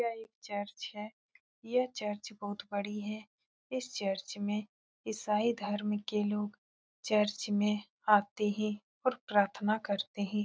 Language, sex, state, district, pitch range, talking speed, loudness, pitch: Hindi, female, Bihar, Saran, 205-215 Hz, 140 wpm, -34 LUFS, 210 Hz